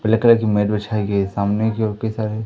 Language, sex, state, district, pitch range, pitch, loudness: Hindi, male, Madhya Pradesh, Umaria, 105-110 Hz, 110 Hz, -19 LUFS